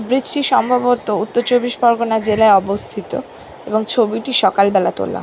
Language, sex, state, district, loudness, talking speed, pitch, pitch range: Bengali, female, West Bengal, North 24 Parganas, -16 LUFS, 150 wpm, 230 Hz, 215-245 Hz